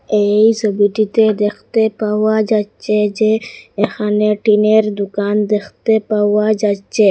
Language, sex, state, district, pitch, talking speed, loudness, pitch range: Bengali, female, Assam, Hailakandi, 210 Hz, 100 wpm, -15 LUFS, 210-220 Hz